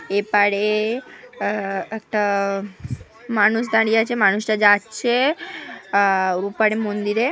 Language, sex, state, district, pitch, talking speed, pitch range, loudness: Bengali, female, West Bengal, Jhargram, 215 Hz, 100 wpm, 205-225 Hz, -20 LUFS